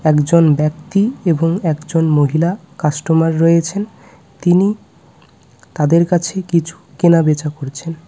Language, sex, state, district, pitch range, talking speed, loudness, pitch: Bengali, male, West Bengal, Cooch Behar, 150-175 Hz, 105 wpm, -15 LUFS, 165 Hz